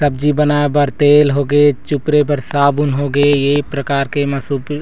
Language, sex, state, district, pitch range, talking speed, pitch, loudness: Chhattisgarhi, male, Chhattisgarh, Raigarh, 140-145 Hz, 150 wpm, 145 Hz, -14 LUFS